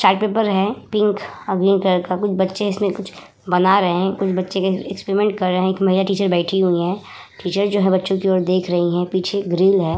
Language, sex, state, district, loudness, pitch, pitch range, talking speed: Hindi, female, Uttar Pradesh, Hamirpur, -18 LUFS, 190 Hz, 185-195 Hz, 235 wpm